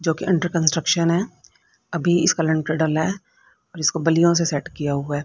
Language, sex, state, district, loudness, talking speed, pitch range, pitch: Hindi, female, Haryana, Rohtak, -20 LUFS, 195 wpm, 155-170 Hz, 165 Hz